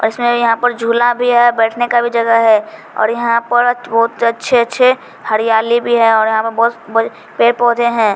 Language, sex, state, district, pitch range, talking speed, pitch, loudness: Hindi, female, Bihar, Patna, 225-240 Hz, 205 wpm, 235 Hz, -13 LUFS